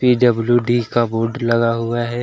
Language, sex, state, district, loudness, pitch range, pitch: Hindi, male, Uttar Pradesh, Lucknow, -17 LUFS, 115-120 Hz, 120 Hz